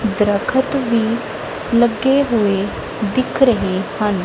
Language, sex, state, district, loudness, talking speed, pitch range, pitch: Punjabi, female, Punjab, Kapurthala, -17 LUFS, 100 wpm, 205-255 Hz, 225 Hz